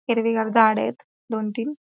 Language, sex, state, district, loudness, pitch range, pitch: Marathi, female, Maharashtra, Pune, -22 LUFS, 220-235 Hz, 230 Hz